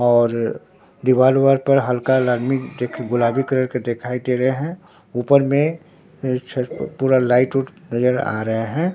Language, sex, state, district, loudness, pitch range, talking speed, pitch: Hindi, male, Bihar, Katihar, -19 LUFS, 125-135 Hz, 140 wpm, 130 Hz